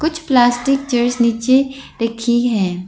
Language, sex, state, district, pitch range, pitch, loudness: Hindi, female, Arunachal Pradesh, Lower Dibang Valley, 230-265 Hz, 245 Hz, -16 LUFS